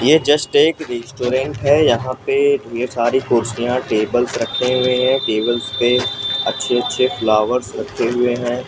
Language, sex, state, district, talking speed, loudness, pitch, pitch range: Hindi, male, Maharashtra, Mumbai Suburban, 150 wpm, -17 LUFS, 125 Hz, 120-135 Hz